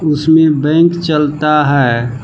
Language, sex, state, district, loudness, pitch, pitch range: Hindi, male, Jharkhand, Palamu, -11 LUFS, 150 Hz, 145-160 Hz